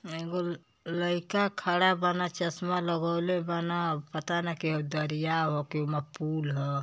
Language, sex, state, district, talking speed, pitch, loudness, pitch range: Bhojpuri, male, Uttar Pradesh, Ghazipur, 160 wpm, 170 Hz, -30 LUFS, 155-175 Hz